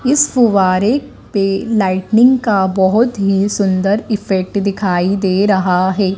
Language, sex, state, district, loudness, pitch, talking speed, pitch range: Hindi, female, Madhya Pradesh, Dhar, -14 LUFS, 200 Hz, 125 wpm, 190-215 Hz